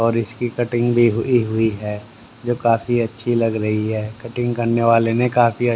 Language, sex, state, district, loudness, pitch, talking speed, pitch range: Hindi, male, Haryana, Rohtak, -19 LUFS, 115 Hz, 185 wpm, 115-120 Hz